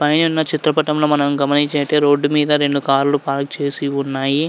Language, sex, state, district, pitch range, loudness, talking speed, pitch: Telugu, male, Andhra Pradesh, Visakhapatnam, 140-150 Hz, -17 LUFS, 145 wpm, 145 Hz